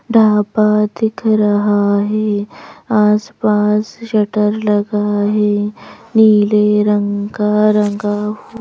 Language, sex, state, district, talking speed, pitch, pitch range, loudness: Hindi, female, Madhya Pradesh, Bhopal, 90 wpm, 210 Hz, 205-215 Hz, -14 LUFS